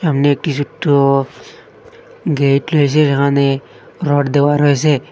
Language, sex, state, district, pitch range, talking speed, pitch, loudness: Bengali, male, Assam, Hailakandi, 140-155 Hz, 80 wpm, 145 Hz, -14 LUFS